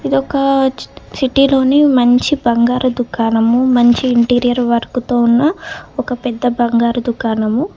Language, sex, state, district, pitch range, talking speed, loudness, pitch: Telugu, female, Telangana, Hyderabad, 235-270 Hz, 125 wpm, -14 LUFS, 245 Hz